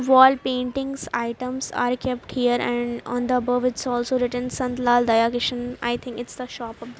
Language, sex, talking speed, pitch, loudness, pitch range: English, female, 195 wpm, 245 Hz, -23 LUFS, 240-255 Hz